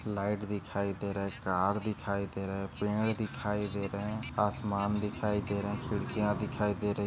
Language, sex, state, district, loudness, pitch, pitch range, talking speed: Hindi, male, Maharashtra, Nagpur, -34 LUFS, 105 Hz, 100-105 Hz, 205 wpm